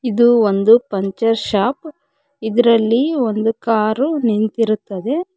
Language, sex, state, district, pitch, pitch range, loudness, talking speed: Kannada, female, Karnataka, Koppal, 230 Hz, 215-265 Hz, -16 LUFS, 90 wpm